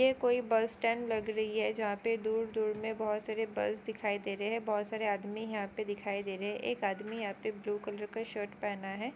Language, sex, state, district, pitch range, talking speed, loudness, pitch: Hindi, female, West Bengal, Kolkata, 205-225 Hz, 250 wpm, -35 LUFS, 215 Hz